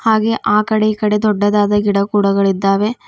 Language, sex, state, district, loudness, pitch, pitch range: Kannada, female, Karnataka, Bidar, -15 LUFS, 210 Hz, 200-215 Hz